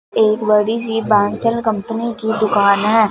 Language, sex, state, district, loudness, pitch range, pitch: Hindi, female, Punjab, Fazilka, -16 LUFS, 210-225 Hz, 220 Hz